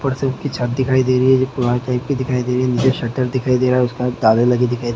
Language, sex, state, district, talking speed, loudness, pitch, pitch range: Hindi, male, Chhattisgarh, Bilaspur, 325 wpm, -17 LUFS, 125 Hz, 125-130 Hz